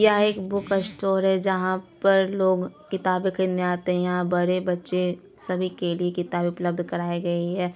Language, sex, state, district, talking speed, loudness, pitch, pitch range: Hindi, female, Bihar, Lakhisarai, 180 wpm, -24 LUFS, 185 Hz, 175-190 Hz